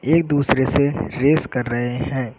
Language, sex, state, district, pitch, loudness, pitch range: Hindi, male, Uttar Pradesh, Lucknow, 135 Hz, -19 LUFS, 125-145 Hz